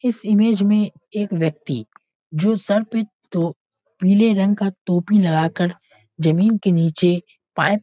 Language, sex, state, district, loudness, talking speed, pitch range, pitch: Hindi, male, Bihar, Muzaffarpur, -19 LUFS, 155 wpm, 165-210 Hz, 195 Hz